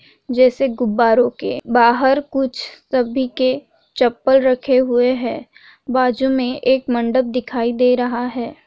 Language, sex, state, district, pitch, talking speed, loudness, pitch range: Hindi, female, Chhattisgarh, Raigarh, 250 Hz, 130 wpm, -17 LUFS, 245-260 Hz